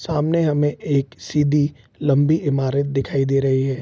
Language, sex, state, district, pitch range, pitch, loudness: Hindi, male, Bihar, East Champaran, 135-150 Hz, 140 Hz, -20 LUFS